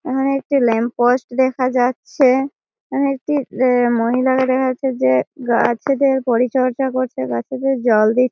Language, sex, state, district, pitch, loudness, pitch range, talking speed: Bengali, female, West Bengal, Malda, 255 Hz, -17 LUFS, 240-265 Hz, 135 wpm